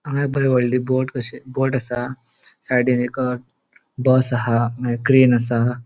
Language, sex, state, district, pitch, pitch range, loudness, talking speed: Konkani, male, Goa, North and South Goa, 125 Hz, 120-130 Hz, -19 LUFS, 155 wpm